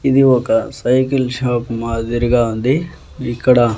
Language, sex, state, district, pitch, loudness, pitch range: Telugu, male, Andhra Pradesh, Annamaya, 120 Hz, -16 LUFS, 115-130 Hz